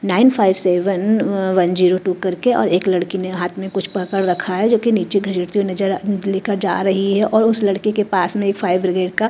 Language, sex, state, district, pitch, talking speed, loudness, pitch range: Hindi, female, Chhattisgarh, Raipur, 195 Hz, 245 wpm, -17 LUFS, 185-205 Hz